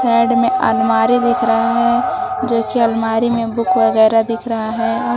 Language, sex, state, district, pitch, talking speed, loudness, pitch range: Hindi, female, Jharkhand, Palamu, 235 Hz, 175 wpm, -15 LUFS, 225-245 Hz